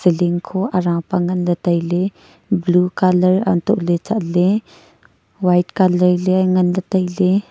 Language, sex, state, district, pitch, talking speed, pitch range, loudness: Wancho, female, Arunachal Pradesh, Longding, 180 Hz, 110 wpm, 175-190 Hz, -17 LUFS